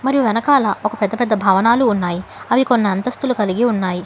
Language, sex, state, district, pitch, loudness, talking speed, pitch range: Telugu, female, Telangana, Hyderabad, 220 Hz, -16 LUFS, 180 wpm, 200-250 Hz